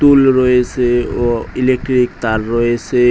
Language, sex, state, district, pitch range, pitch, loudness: Bengali, male, West Bengal, Cooch Behar, 120-130 Hz, 125 Hz, -14 LUFS